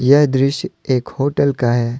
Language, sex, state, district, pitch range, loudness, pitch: Hindi, male, Jharkhand, Deoghar, 125-140 Hz, -17 LUFS, 135 Hz